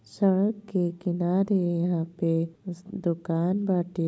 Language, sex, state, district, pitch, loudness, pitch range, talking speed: Bhojpuri, female, Uttar Pradesh, Gorakhpur, 175 Hz, -27 LUFS, 170-195 Hz, 115 wpm